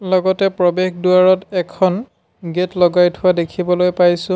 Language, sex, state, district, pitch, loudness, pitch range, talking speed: Assamese, male, Assam, Sonitpur, 180 Hz, -16 LUFS, 180-185 Hz, 125 wpm